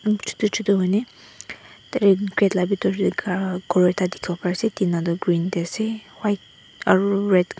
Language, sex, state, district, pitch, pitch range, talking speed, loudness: Nagamese, female, Nagaland, Dimapur, 195 Hz, 180-205 Hz, 180 wpm, -22 LUFS